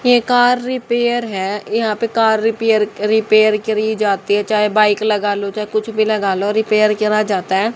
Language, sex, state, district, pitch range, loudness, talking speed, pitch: Hindi, female, Haryana, Rohtak, 210-225 Hz, -16 LUFS, 195 wpm, 215 Hz